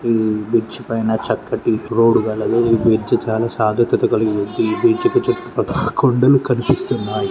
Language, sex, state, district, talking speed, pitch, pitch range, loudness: Telugu, male, Andhra Pradesh, Srikakulam, 140 wpm, 115 Hz, 110-125 Hz, -17 LUFS